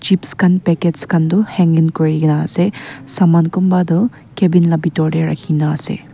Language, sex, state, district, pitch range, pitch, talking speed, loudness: Nagamese, female, Nagaland, Kohima, 155-185 Hz, 170 Hz, 185 wpm, -15 LUFS